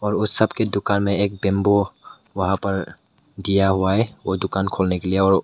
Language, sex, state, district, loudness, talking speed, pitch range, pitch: Hindi, male, Meghalaya, West Garo Hills, -20 LUFS, 200 wpm, 95-100 Hz, 100 Hz